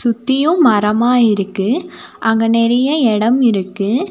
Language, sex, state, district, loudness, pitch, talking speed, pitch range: Tamil, female, Tamil Nadu, Nilgiris, -14 LUFS, 235 Hz, 100 wpm, 215-255 Hz